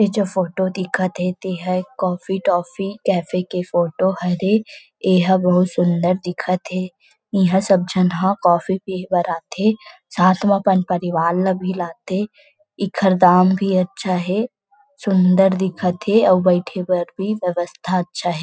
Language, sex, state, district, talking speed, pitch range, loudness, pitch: Chhattisgarhi, female, Chhattisgarh, Rajnandgaon, 165 wpm, 180-195 Hz, -19 LUFS, 185 Hz